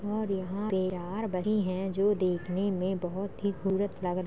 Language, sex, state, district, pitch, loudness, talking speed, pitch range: Hindi, female, Uttar Pradesh, Jalaun, 190 Hz, -31 LUFS, 170 wpm, 185-200 Hz